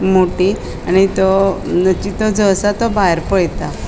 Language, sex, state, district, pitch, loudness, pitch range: Konkani, female, Goa, North and South Goa, 190 Hz, -15 LUFS, 185-200 Hz